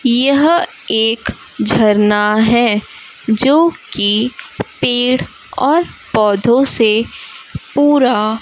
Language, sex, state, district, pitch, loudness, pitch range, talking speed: Hindi, female, Chhattisgarh, Raipur, 240 Hz, -13 LUFS, 215-275 Hz, 80 wpm